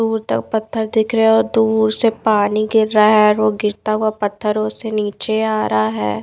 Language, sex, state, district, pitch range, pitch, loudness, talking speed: Hindi, female, Odisha, Nuapada, 210-220 Hz, 215 Hz, -16 LUFS, 220 wpm